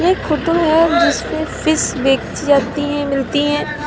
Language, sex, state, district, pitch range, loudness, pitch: Hindi, female, Uttar Pradesh, Lalitpur, 285-325 Hz, -16 LUFS, 295 Hz